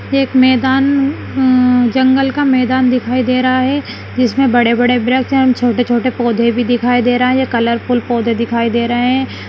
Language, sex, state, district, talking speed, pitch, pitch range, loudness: Hindi, female, Maharashtra, Solapur, 190 wpm, 250 Hz, 240-260 Hz, -13 LUFS